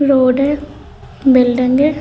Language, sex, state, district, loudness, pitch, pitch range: Hindi, female, Uttar Pradesh, Muzaffarnagar, -13 LUFS, 270 Hz, 255-285 Hz